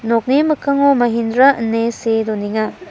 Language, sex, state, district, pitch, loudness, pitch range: Garo, female, Meghalaya, West Garo Hills, 230 Hz, -15 LUFS, 225-275 Hz